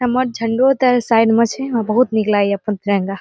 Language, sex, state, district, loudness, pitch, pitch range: Maithili, female, Bihar, Saharsa, -16 LUFS, 225 Hz, 210-250 Hz